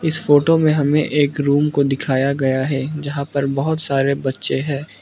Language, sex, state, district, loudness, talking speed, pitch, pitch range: Hindi, male, Arunachal Pradesh, Lower Dibang Valley, -18 LUFS, 190 wpm, 140 Hz, 140-150 Hz